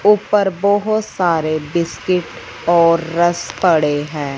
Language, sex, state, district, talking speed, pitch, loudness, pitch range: Hindi, male, Punjab, Fazilka, 110 wpm, 175 Hz, -16 LUFS, 160-195 Hz